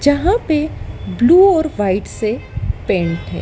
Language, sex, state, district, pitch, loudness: Hindi, female, Madhya Pradesh, Dhar, 220 Hz, -16 LUFS